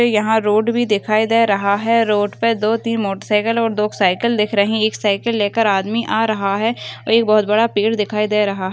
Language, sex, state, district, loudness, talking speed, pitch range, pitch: Hindi, female, Bihar, Begusarai, -17 LUFS, 235 wpm, 205-230 Hz, 215 Hz